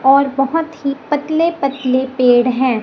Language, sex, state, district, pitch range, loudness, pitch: Hindi, female, Chhattisgarh, Raipur, 260-295 Hz, -16 LUFS, 275 Hz